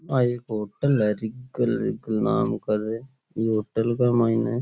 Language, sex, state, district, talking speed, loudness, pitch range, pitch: Rajasthani, male, Rajasthan, Churu, 145 wpm, -25 LUFS, 110-125 Hz, 115 Hz